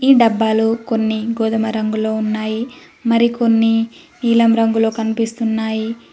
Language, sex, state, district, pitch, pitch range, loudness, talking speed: Telugu, female, Telangana, Mahabubabad, 225 Hz, 220-230 Hz, -17 LUFS, 100 wpm